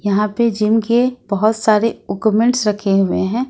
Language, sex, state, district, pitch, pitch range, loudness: Hindi, female, Jharkhand, Ranchi, 215 Hz, 205-235 Hz, -16 LUFS